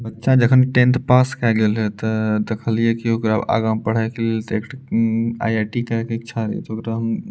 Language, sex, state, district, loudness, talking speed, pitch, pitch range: Maithili, male, Bihar, Purnia, -19 LUFS, 195 wpm, 115 Hz, 110-120 Hz